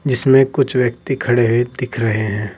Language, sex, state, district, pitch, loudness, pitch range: Hindi, male, Uttar Pradesh, Saharanpur, 120 Hz, -16 LUFS, 115-130 Hz